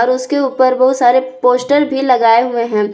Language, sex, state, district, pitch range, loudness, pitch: Hindi, female, Jharkhand, Palamu, 240-260 Hz, -13 LUFS, 255 Hz